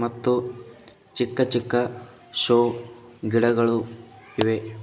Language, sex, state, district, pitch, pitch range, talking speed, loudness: Kannada, male, Karnataka, Bidar, 120 Hz, 115-120 Hz, 75 wpm, -23 LUFS